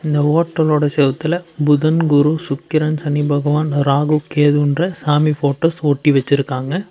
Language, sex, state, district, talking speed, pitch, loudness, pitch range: Tamil, male, Tamil Nadu, Namakkal, 120 wpm, 150 Hz, -16 LUFS, 145-155 Hz